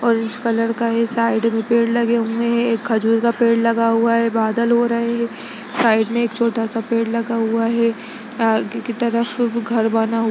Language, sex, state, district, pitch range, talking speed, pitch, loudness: Hindi, male, Chhattisgarh, Bastar, 225-235 Hz, 205 wpm, 230 Hz, -18 LUFS